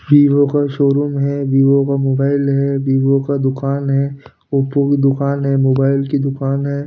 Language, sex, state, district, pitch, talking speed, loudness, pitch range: Hindi, male, Punjab, Pathankot, 140 Hz, 175 wpm, -15 LUFS, 135-140 Hz